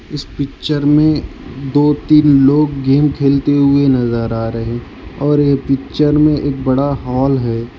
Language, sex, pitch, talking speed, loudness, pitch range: Hindi, male, 140 Hz, 160 wpm, -14 LUFS, 130-145 Hz